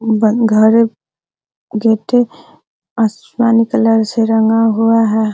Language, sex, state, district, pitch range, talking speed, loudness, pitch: Hindi, female, Bihar, Araria, 220-230 Hz, 100 wpm, -13 LUFS, 225 Hz